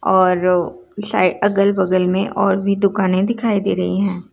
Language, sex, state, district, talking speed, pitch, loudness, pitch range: Hindi, female, Bihar, Darbhanga, 155 wpm, 195 Hz, -17 LUFS, 185-200 Hz